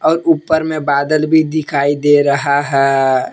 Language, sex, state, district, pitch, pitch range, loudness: Hindi, male, Jharkhand, Palamu, 145 Hz, 140-155 Hz, -14 LUFS